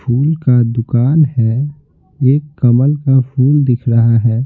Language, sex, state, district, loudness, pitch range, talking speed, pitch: Hindi, male, Bihar, Patna, -13 LUFS, 120-145 Hz, 150 wpm, 130 Hz